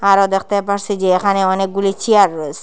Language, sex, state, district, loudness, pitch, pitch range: Bengali, female, Assam, Hailakandi, -15 LUFS, 195 Hz, 190-200 Hz